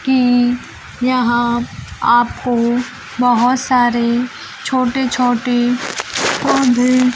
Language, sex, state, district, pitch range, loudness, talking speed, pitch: Hindi, female, Bihar, Kaimur, 240-255 Hz, -15 LUFS, 65 wpm, 245 Hz